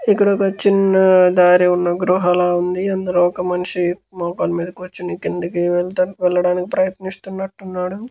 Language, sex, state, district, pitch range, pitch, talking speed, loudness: Telugu, male, Andhra Pradesh, Guntur, 180-190 Hz, 180 Hz, 125 wpm, -17 LUFS